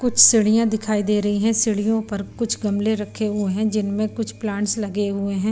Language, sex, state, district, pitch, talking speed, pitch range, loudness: Hindi, female, Punjab, Pathankot, 215 Hz, 205 wpm, 205-220 Hz, -20 LUFS